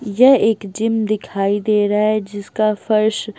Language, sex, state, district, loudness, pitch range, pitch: Hindi, female, Bihar, Patna, -17 LUFS, 205-220 Hz, 215 Hz